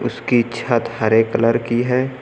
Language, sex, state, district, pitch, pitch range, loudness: Hindi, male, Uttar Pradesh, Lucknow, 115 Hz, 115-120 Hz, -18 LUFS